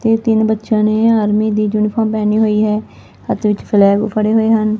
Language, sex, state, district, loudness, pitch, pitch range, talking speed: Punjabi, female, Punjab, Fazilka, -14 LUFS, 215 Hz, 210-220 Hz, 200 wpm